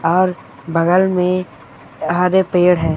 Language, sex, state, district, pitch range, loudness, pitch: Hindi, female, Chhattisgarh, Jashpur, 165-185 Hz, -16 LUFS, 180 Hz